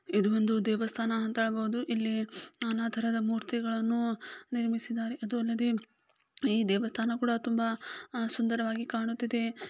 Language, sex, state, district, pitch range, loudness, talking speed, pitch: Kannada, female, Karnataka, Gulbarga, 220-235 Hz, -32 LUFS, 110 wpm, 230 Hz